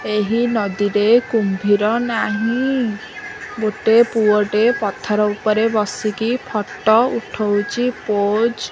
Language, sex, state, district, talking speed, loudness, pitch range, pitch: Odia, female, Odisha, Khordha, 90 wpm, -18 LUFS, 210-230 Hz, 215 Hz